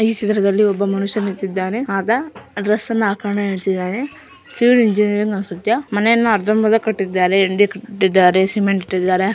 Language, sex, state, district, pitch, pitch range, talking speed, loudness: Kannada, female, Karnataka, Dharwad, 205 Hz, 195-220 Hz, 120 wpm, -17 LUFS